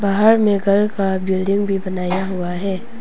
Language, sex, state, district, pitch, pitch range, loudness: Hindi, female, Arunachal Pradesh, Papum Pare, 195 Hz, 190-205 Hz, -18 LUFS